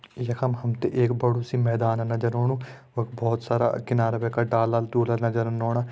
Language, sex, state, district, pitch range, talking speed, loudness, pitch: Hindi, male, Uttarakhand, Uttarkashi, 115-120 Hz, 195 wpm, -25 LUFS, 120 Hz